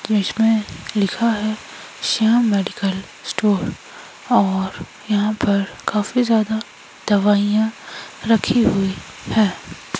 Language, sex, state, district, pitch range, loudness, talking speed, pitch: Hindi, female, Himachal Pradesh, Shimla, 200-225 Hz, -19 LUFS, 95 wpm, 210 Hz